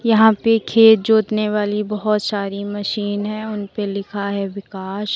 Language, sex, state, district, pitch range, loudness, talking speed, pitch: Hindi, female, Uttar Pradesh, Lalitpur, 200-215 Hz, -18 LUFS, 160 wpm, 210 Hz